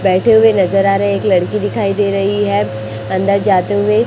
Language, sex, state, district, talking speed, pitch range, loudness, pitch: Hindi, female, Chhattisgarh, Raipur, 220 wpm, 190-205 Hz, -14 LUFS, 200 Hz